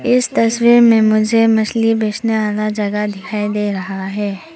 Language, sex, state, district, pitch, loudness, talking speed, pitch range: Hindi, female, Arunachal Pradesh, Papum Pare, 215 Hz, -15 LUFS, 155 wpm, 210-225 Hz